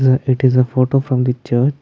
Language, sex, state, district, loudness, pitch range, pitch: English, male, Karnataka, Bangalore, -16 LUFS, 125-135 Hz, 130 Hz